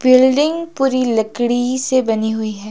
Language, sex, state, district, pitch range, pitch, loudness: Hindi, female, Himachal Pradesh, Shimla, 220-260 Hz, 255 Hz, -16 LUFS